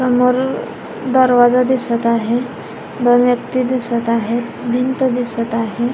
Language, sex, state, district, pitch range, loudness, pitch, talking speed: Marathi, female, Maharashtra, Pune, 235-255 Hz, -16 LUFS, 245 Hz, 110 wpm